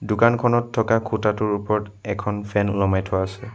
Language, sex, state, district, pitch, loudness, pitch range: Assamese, male, Assam, Sonitpur, 105 Hz, -22 LUFS, 100-115 Hz